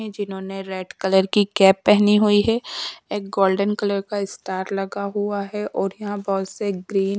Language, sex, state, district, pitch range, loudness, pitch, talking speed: Hindi, female, Bihar, Patna, 195-205 Hz, -21 LUFS, 200 Hz, 190 wpm